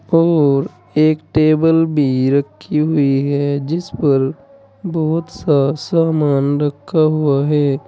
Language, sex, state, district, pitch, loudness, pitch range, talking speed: Hindi, male, Uttar Pradesh, Saharanpur, 145 Hz, -16 LUFS, 140-155 Hz, 115 wpm